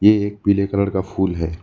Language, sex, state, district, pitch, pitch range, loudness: Hindi, male, West Bengal, Alipurduar, 100 Hz, 95-100 Hz, -19 LUFS